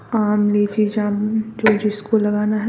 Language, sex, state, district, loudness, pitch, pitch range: Hindi, female, Bihar, Gopalganj, -19 LUFS, 210 Hz, 210-220 Hz